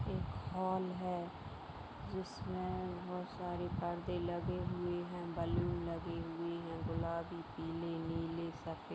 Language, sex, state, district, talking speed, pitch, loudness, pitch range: Hindi, female, Bihar, Madhepura, 120 wpm, 170 Hz, -41 LUFS, 110-175 Hz